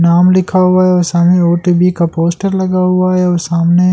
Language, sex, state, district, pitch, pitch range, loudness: Hindi, male, Delhi, New Delhi, 180 Hz, 170-185 Hz, -11 LUFS